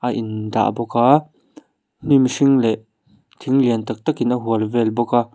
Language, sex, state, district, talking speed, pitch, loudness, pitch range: Mizo, male, Mizoram, Aizawl, 190 wpm, 120 Hz, -18 LUFS, 110-135 Hz